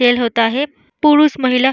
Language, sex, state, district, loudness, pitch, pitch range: Hindi, female, Bihar, Vaishali, -14 LUFS, 260 Hz, 245-295 Hz